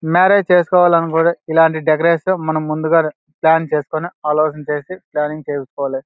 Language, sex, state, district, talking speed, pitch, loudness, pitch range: Telugu, male, Andhra Pradesh, Anantapur, 100 wpm, 160 Hz, -16 LUFS, 150-170 Hz